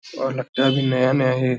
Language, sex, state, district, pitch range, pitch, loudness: Hindi, male, Bihar, Darbhanga, 130-135 Hz, 130 Hz, -20 LUFS